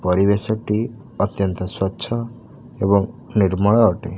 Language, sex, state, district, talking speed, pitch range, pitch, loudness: Odia, male, Odisha, Khordha, 100 wpm, 95-115 Hz, 105 Hz, -20 LUFS